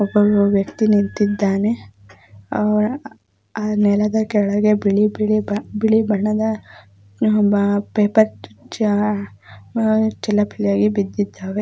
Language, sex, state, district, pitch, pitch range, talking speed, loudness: Kannada, female, Karnataka, Dakshina Kannada, 210 Hz, 200-215 Hz, 45 wpm, -18 LUFS